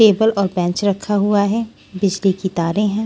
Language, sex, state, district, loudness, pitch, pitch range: Hindi, female, Maharashtra, Washim, -18 LUFS, 200 Hz, 190-210 Hz